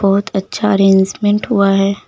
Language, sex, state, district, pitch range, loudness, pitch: Hindi, female, Uttar Pradesh, Lucknow, 195-205 Hz, -14 LUFS, 200 Hz